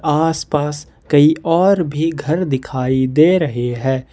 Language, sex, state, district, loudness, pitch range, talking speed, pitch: Hindi, male, Jharkhand, Ranchi, -16 LUFS, 130-165 Hz, 130 wpm, 150 Hz